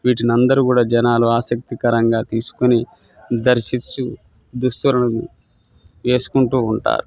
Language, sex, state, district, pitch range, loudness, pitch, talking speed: Telugu, male, Telangana, Nalgonda, 115-125 Hz, -18 LUFS, 120 Hz, 85 wpm